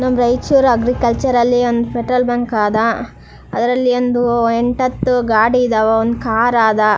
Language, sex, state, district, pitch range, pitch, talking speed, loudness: Kannada, female, Karnataka, Raichur, 230-250 Hz, 240 Hz, 145 wpm, -15 LUFS